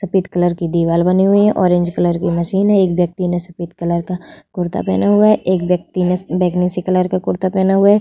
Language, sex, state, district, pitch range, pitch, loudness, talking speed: Hindi, female, Bihar, Vaishali, 175-190 Hz, 180 Hz, -16 LUFS, 255 wpm